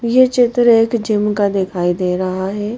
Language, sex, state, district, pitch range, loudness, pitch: Hindi, female, Madhya Pradesh, Bhopal, 185-235 Hz, -15 LUFS, 210 Hz